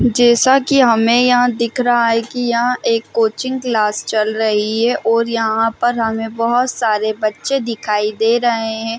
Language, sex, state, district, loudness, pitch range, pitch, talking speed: Hindi, female, Chhattisgarh, Bilaspur, -15 LUFS, 225-245 Hz, 230 Hz, 175 wpm